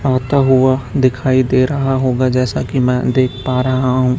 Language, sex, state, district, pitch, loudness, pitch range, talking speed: Hindi, male, Chhattisgarh, Raipur, 130 Hz, -15 LUFS, 125-130 Hz, 185 wpm